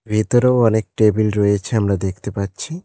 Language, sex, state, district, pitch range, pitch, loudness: Bengali, male, West Bengal, Cooch Behar, 100-115 Hz, 110 Hz, -18 LUFS